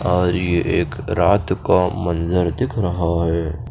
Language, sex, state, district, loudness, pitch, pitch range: Hindi, male, Chandigarh, Chandigarh, -19 LUFS, 90 Hz, 85-100 Hz